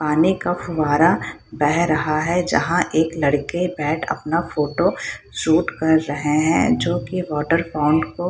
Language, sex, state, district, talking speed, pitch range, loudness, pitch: Hindi, female, Bihar, Purnia, 160 wpm, 150-175 Hz, -20 LUFS, 160 Hz